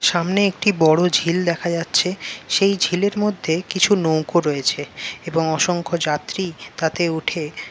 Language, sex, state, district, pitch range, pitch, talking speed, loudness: Bengali, male, West Bengal, Jalpaiguri, 160-190 Hz, 170 Hz, 140 wpm, -20 LUFS